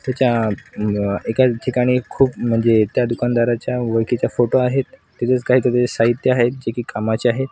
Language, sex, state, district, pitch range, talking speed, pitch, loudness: Marathi, male, Maharashtra, Washim, 115-125 Hz, 145 wpm, 120 Hz, -18 LUFS